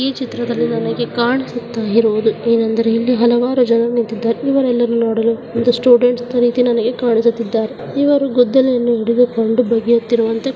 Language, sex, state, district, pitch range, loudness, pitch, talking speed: Kannada, female, Karnataka, Bellary, 230-245 Hz, -15 LUFS, 235 Hz, 130 wpm